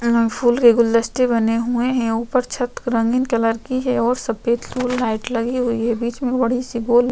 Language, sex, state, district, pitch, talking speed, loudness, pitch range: Hindi, female, Chhattisgarh, Sukma, 240 Hz, 225 wpm, -19 LUFS, 230-250 Hz